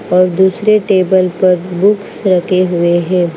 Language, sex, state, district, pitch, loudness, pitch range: Hindi, female, Bihar, Patna, 185 Hz, -12 LUFS, 180-190 Hz